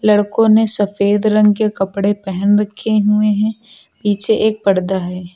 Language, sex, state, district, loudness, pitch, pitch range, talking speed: Hindi, female, Uttar Pradesh, Lucknow, -15 LUFS, 210 Hz, 200-215 Hz, 155 wpm